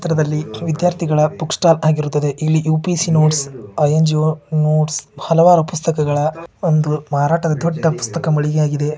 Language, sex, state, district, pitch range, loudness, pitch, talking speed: Kannada, male, Karnataka, Shimoga, 150-165 Hz, -16 LUFS, 155 Hz, 135 wpm